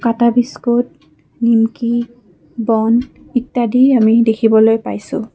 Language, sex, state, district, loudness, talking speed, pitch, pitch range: Assamese, female, Assam, Kamrup Metropolitan, -14 LUFS, 90 wpm, 235 Hz, 220-240 Hz